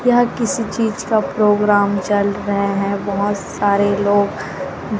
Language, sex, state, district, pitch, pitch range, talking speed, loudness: Hindi, female, Chhattisgarh, Raipur, 205 Hz, 200-210 Hz, 130 wpm, -17 LUFS